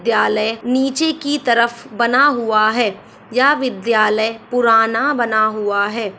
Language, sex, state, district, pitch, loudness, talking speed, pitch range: Hindi, female, Bihar, Saharsa, 230 Hz, -16 LUFS, 125 wpm, 215-250 Hz